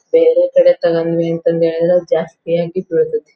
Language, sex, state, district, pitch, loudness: Kannada, female, Karnataka, Belgaum, 175 Hz, -14 LUFS